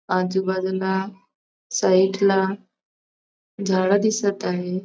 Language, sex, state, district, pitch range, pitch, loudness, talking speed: Marathi, female, Maharashtra, Dhule, 185-200 Hz, 190 Hz, -21 LUFS, 60 wpm